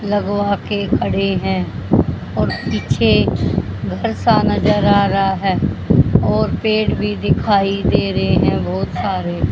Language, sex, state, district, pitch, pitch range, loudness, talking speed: Hindi, female, Haryana, Rohtak, 195 Hz, 190-205 Hz, -17 LUFS, 130 wpm